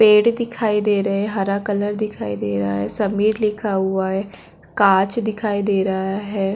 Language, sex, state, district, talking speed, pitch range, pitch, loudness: Hindi, female, Chhattisgarh, Korba, 185 wpm, 195-215 Hz, 200 Hz, -20 LUFS